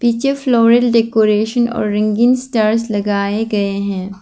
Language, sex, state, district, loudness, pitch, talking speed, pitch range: Hindi, female, Arunachal Pradesh, Lower Dibang Valley, -15 LUFS, 220 Hz, 130 wpm, 205-235 Hz